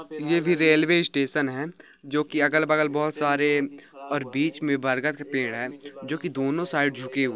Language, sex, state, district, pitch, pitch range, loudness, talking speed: Hindi, male, Chhattisgarh, Raigarh, 145 Hz, 140-155 Hz, -24 LUFS, 190 wpm